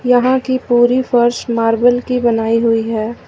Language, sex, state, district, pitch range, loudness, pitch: Hindi, female, Uttar Pradesh, Lucknow, 230-250 Hz, -14 LUFS, 240 Hz